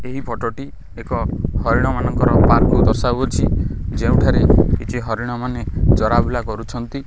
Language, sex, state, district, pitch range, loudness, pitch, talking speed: Odia, male, Odisha, Khordha, 95-120 Hz, -18 LUFS, 115 Hz, 120 wpm